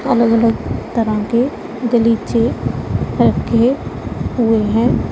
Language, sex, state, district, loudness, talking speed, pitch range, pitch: Hindi, female, Punjab, Pathankot, -16 LUFS, 95 wpm, 225-240 Hz, 230 Hz